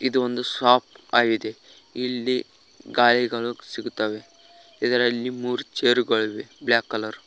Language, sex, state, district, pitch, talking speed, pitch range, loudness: Kannada, male, Karnataka, Koppal, 120 Hz, 105 wpm, 115-125 Hz, -23 LUFS